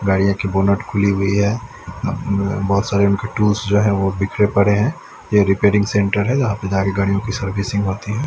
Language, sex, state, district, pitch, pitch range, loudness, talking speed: Hindi, male, Haryana, Rohtak, 100 Hz, 100-105 Hz, -18 LUFS, 205 wpm